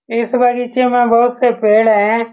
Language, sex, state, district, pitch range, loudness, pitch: Hindi, male, Bihar, Saran, 230-245 Hz, -13 LUFS, 235 Hz